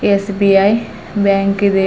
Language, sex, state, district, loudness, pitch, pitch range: Kannada, female, Karnataka, Bidar, -14 LUFS, 200 Hz, 195-200 Hz